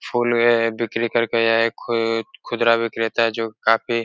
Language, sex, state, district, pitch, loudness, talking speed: Hindi, male, Uttar Pradesh, Etah, 115 Hz, -20 LUFS, 180 wpm